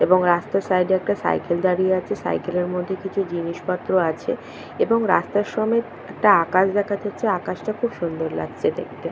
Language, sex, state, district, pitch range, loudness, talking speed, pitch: Bengali, female, West Bengal, Purulia, 175-205 Hz, -22 LUFS, 170 wpm, 185 Hz